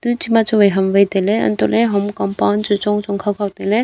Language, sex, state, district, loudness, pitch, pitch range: Wancho, female, Arunachal Pradesh, Longding, -16 LUFS, 205 Hz, 195-210 Hz